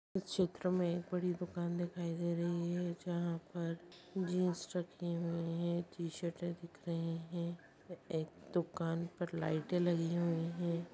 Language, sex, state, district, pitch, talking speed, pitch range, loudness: Hindi, female, Bihar, Madhepura, 170 Hz, 150 wpm, 170-175 Hz, -39 LUFS